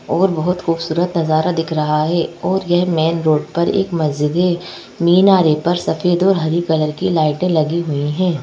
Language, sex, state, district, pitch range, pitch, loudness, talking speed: Hindi, female, Madhya Pradesh, Bhopal, 155-180 Hz, 165 Hz, -16 LUFS, 185 wpm